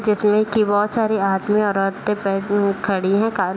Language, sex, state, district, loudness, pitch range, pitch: Hindi, female, Bihar, Saharsa, -19 LUFS, 195-210 Hz, 205 Hz